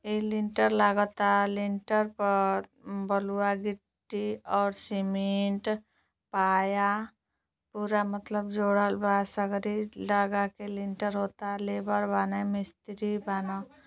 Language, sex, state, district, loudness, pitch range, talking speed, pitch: Bhojpuri, female, Uttar Pradesh, Gorakhpur, -29 LUFS, 200-210 Hz, 90 wpm, 200 Hz